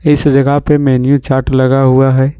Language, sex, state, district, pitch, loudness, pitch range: Hindi, male, Jharkhand, Ranchi, 135 Hz, -10 LUFS, 130-145 Hz